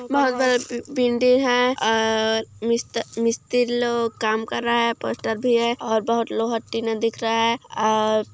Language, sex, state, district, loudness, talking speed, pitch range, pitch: Hindi, female, Chhattisgarh, Kabirdham, -22 LUFS, 195 wpm, 225-245 Hz, 230 Hz